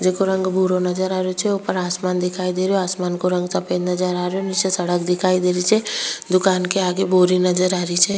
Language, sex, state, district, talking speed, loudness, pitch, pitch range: Rajasthani, female, Rajasthan, Churu, 235 wpm, -19 LUFS, 185 Hz, 180-190 Hz